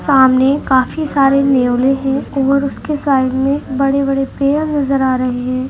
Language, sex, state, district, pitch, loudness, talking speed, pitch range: Hindi, female, Uttar Pradesh, Deoria, 270 Hz, -14 LUFS, 170 wpm, 260-280 Hz